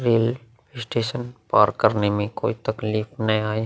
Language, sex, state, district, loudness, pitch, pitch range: Hindi, male, Uttar Pradesh, Muzaffarnagar, -23 LUFS, 110 Hz, 110-120 Hz